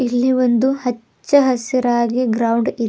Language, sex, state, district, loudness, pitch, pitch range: Kannada, female, Karnataka, Bidar, -17 LUFS, 245 Hz, 235-255 Hz